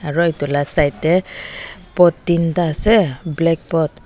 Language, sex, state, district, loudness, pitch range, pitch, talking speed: Nagamese, female, Nagaland, Dimapur, -17 LUFS, 150-175 Hz, 165 Hz, 160 wpm